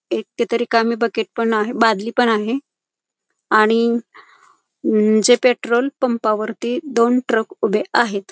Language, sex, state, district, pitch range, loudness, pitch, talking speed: Marathi, female, Maharashtra, Pune, 220-245 Hz, -18 LUFS, 235 Hz, 130 wpm